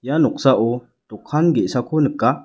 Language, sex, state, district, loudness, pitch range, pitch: Garo, male, Meghalaya, West Garo Hills, -18 LUFS, 125-155 Hz, 135 Hz